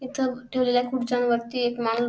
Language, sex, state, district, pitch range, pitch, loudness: Marathi, female, Maharashtra, Sindhudurg, 240-255 Hz, 245 Hz, -25 LUFS